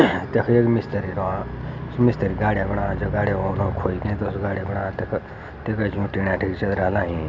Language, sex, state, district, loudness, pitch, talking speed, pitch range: Garhwali, male, Uttarakhand, Uttarkashi, -23 LUFS, 100 Hz, 155 wpm, 95-110 Hz